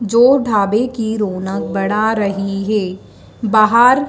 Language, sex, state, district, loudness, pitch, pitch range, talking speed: Hindi, female, Madhya Pradesh, Dhar, -15 LUFS, 215 Hz, 195-230 Hz, 115 wpm